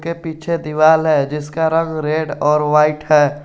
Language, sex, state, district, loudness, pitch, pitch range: Hindi, male, Jharkhand, Garhwa, -16 LUFS, 155 Hz, 150-160 Hz